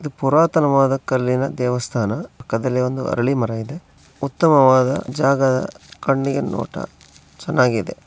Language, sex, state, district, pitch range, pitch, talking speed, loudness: Kannada, male, Karnataka, Shimoga, 125-140 Hz, 135 Hz, 105 wpm, -19 LUFS